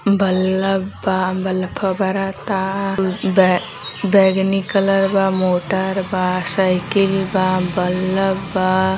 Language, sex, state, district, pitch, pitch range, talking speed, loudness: Hindi, female, Uttar Pradesh, Gorakhpur, 190 Hz, 185-195 Hz, 95 wpm, -18 LUFS